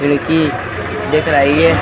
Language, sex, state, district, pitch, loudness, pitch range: Hindi, male, Uttar Pradesh, Jalaun, 145 Hz, -14 LUFS, 120-155 Hz